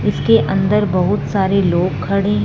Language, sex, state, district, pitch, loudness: Hindi, female, Punjab, Fazilka, 180 Hz, -16 LUFS